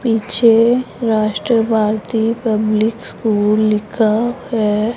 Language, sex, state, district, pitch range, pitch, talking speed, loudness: Hindi, female, Punjab, Pathankot, 215-230 Hz, 220 Hz, 70 wpm, -16 LUFS